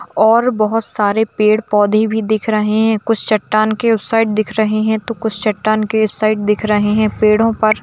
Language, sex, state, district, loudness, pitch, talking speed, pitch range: Hindi, female, Bihar, Kishanganj, -14 LUFS, 215 Hz, 215 wpm, 215-220 Hz